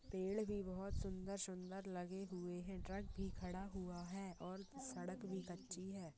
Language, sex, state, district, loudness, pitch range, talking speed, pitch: Hindi, female, Rajasthan, Churu, -48 LUFS, 180-195 Hz, 175 wpm, 190 Hz